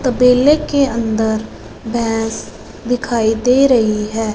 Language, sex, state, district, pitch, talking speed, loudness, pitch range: Hindi, female, Punjab, Fazilka, 235 Hz, 110 wpm, -15 LUFS, 220-250 Hz